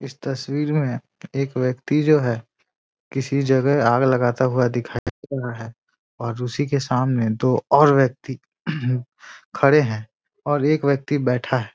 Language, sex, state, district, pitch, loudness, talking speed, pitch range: Hindi, male, Bihar, Muzaffarpur, 130 Hz, -21 LUFS, 155 wpm, 120-140 Hz